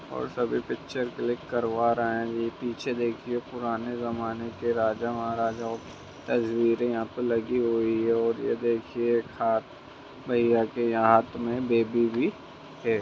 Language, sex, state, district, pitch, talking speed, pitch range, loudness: Hindi, male, Bihar, Jamui, 115 Hz, 145 wpm, 115-120 Hz, -27 LUFS